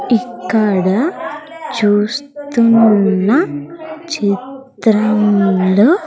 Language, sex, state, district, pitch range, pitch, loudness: Telugu, female, Andhra Pradesh, Sri Satya Sai, 205-285 Hz, 230 Hz, -14 LUFS